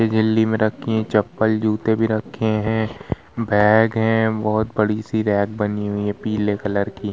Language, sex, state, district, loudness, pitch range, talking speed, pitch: Hindi, male, Uttar Pradesh, Budaun, -20 LUFS, 105-110 Hz, 170 wpm, 110 Hz